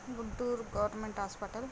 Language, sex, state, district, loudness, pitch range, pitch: Telugu, female, Andhra Pradesh, Guntur, -37 LUFS, 205-240 Hz, 220 Hz